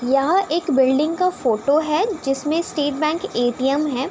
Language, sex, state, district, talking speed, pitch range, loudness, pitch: Hindi, female, Uttar Pradesh, Budaun, 175 wpm, 270-330 Hz, -20 LUFS, 295 Hz